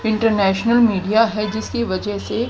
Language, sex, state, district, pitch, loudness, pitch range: Hindi, female, Haryana, Jhajjar, 220 Hz, -18 LUFS, 205-230 Hz